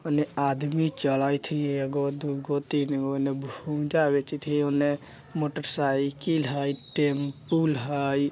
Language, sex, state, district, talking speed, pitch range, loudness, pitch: Bajjika, male, Bihar, Vaishali, 125 wpm, 140-150 Hz, -27 LUFS, 145 Hz